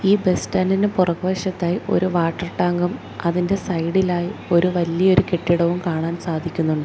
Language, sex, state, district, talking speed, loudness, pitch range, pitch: Malayalam, female, Kerala, Kollam, 140 wpm, -20 LUFS, 170-185 Hz, 175 Hz